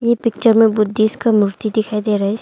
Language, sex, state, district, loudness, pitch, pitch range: Hindi, female, Arunachal Pradesh, Longding, -16 LUFS, 215 Hz, 210-225 Hz